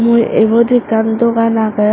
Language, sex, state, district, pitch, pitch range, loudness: Chakma, female, Tripura, West Tripura, 230 Hz, 220-235 Hz, -12 LUFS